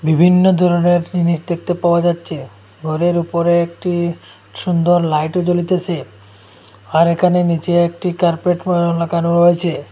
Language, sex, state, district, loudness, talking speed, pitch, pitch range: Bengali, male, Assam, Hailakandi, -16 LUFS, 115 wpm, 170 Hz, 160-175 Hz